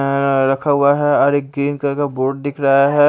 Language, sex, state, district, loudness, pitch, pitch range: Hindi, male, Haryana, Rohtak, -16 LUFS, 140 Hz, 140-145 Hz